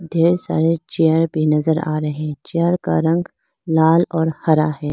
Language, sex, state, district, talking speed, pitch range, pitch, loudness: Hindi, female, Arunachal Pradesh, Lower Dibang Valley, 170 wpm, 155-170 Hz, 160 Hz, -18 LUFS